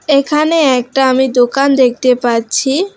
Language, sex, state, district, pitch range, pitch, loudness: Bengali, female, West Bengal, Alipurduar, 250-285 Hz, 265 Hz, -12 LUFS